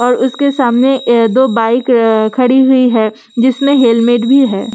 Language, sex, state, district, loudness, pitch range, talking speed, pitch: Hindi, female, Delhi, New Delhi, -11 LUFS, 230-260 Hz, 190 wpm, 245 Hz